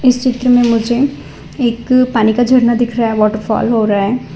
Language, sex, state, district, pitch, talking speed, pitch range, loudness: Hindi, female, Gujarat, Valsad, 240 Hz, 220 wpm, 225-250 Hz, -13 LUFS